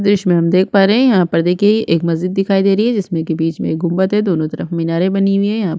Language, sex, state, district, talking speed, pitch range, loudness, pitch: Hindi, female, Chhattisgarh, Sukma, 340 wpm, 170-200 Hz, -15 LUFS, 185 Hz